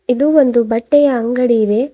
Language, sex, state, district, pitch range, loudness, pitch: Kannada, female, Karnataka, Bidar, 235-285 Hz, -13 LUFS, 250 Hz